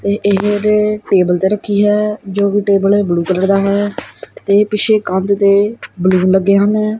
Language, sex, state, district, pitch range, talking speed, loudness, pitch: Punjabi, male, Punjab, Kapurthala, 195-210 Hz, 165 wpm, -13 LUFS, 200 Hz